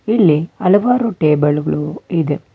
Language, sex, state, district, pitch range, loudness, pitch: Kannada, male, Karnataka, Bangalore, 150-215 Hz, -15 LUFS, 165 Hz